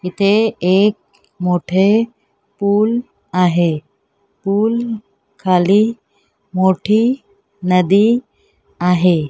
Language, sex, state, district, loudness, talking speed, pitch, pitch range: Marathi, female, Maharashtra, Mumbai Suburban, -16 LUFS, 65 wpm, 200 Hz, 180-220 Hz